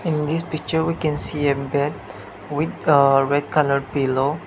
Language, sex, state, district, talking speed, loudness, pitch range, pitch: English, male, Nagaland, Dimapur, 175 wpm, -20 LUFS, 140-155 Hz, 145 Hz